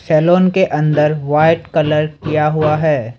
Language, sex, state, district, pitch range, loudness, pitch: Hindi, male, Assam, Sonitpur, 150-160 Hz, -14 LUFS, 155 Hz